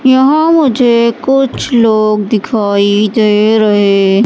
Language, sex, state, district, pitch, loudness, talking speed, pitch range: Hindi, female, Madhya Pradesh, Katni, 220 Hz, -10 LUFS, 100 wpm, 210-260 Hz